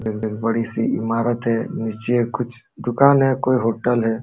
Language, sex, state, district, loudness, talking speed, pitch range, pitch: Hindi, male, Uttar Pradesh, Jalaun, -20 LUFS, 185 wpm, 115-120 Hz, 115 Hz